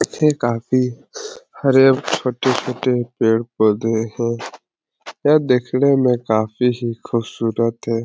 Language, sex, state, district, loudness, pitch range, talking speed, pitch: Hindi, male, Uttar Pradesh, Etah, -18 LUFS, 115-135 Hz, 120 wpm, 120 Hz